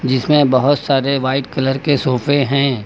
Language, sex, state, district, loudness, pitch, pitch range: Hindi, male, Uttar Pradesh, Lucknow, -15 LUFS, 135 Hz, 130-140 Hz